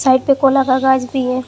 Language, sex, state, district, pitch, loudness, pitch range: Hindi, female, Assam, Hailakandi, 265 Hz, -14 LUFS, 255-270 Hz